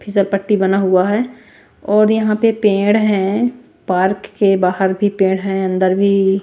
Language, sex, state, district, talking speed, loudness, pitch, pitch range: Hindi, female, Bihar, West Champaran, 170 wpm, -15 LUFS, 200 Hz, 190-210 Hz